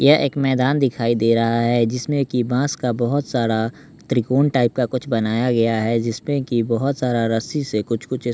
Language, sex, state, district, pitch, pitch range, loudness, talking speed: Hindi, male, Bihar, West Champaran, 120 Hz, 115-135 Hz, -20 LUFS, 215 wpm